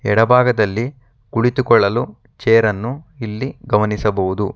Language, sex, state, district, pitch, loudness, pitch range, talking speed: Kannada, male, Karnataka, Bangalore, 115 Hz, -17 LUFS, 105-125 Hz, 65 wpm